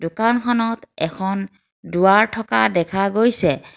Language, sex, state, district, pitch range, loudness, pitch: Assamese, female, Assam, Kamrup Metropolitan, 170-225 Hz, -19 LUFS, 195 Hz